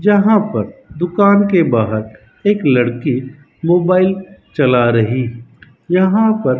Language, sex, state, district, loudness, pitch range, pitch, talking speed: Hindi, male, Rajasthan, Bikaner, -14 LUFS, 125-190 Hz, 165 Hz, 110 wpm